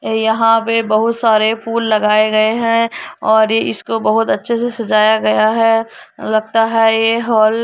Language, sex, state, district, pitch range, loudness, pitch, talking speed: Hindi, female, Uttar Pradesh, Jyotiba Phule Nagar, 215-230 Hz, -14 LUFS, 225 Hz, 175 wpm